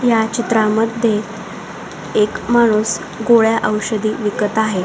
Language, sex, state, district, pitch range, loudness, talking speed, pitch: Marathi, female, Maharashtra, Solapur, 215-225 Hz, -16 LUFS, 100 wpm, 220 Hz